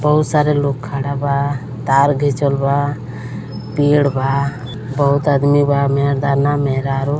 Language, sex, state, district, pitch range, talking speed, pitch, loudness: Bhojpuri, male, Uttar Pradesh, Deoria, 135-145 Hz, 135 wpm, 140 Hz, -16 LUFS